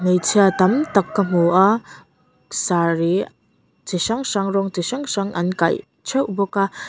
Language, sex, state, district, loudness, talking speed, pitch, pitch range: Mizo, female, Mizoram, Aizawl, -19 LUFS, 175 wpm, 195 Hz, 180-205 Hz